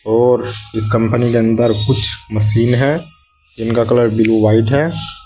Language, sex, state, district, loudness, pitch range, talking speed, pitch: Hindi, male, Uttar Pradesh, Saharanpur, -14 LUFS, 110-125 Hz, 150 wpm, 115 Hz